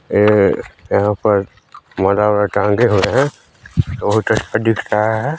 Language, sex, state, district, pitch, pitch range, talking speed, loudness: Hindi, male, Chhattisgarh, Balrampur, 105 Hz, 105-110 Hz, 145 wpm, -16 LUFS